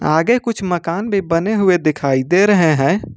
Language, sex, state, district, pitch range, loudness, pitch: Hindi, male, Uttar Pradesh, Lucknow, 160-205 Hz, -15 LUFS, 180 Hz